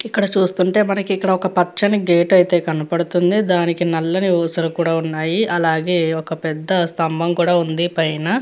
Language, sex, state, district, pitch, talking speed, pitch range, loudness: Telugu, female, Andhra Pradesh, Guntur, 175 Hz, 155 wpm, 165-190 Hz, -17 LUFS